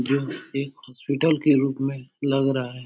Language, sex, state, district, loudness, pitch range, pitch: Hindi, male, Uttar Pradesh, Etah, -24 LUFS, 135-140 Hz, 135 Hz